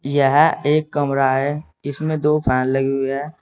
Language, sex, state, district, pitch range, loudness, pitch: Hindi, male, Uttar Pradesh, Saharanpur, 135-150 Hz, -18 LUFS, 140 Hz